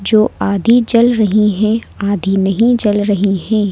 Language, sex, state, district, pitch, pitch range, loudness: Hindi, female, Madhya Pradesh, Bhopal, 210 Hz, 200-225 Hz, -13 LUFS